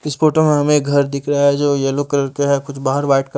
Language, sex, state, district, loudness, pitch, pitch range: Hindi, male, Haryana, Charkhi Dadri, -16 LUFS, 140 Hz, 140-145 Hz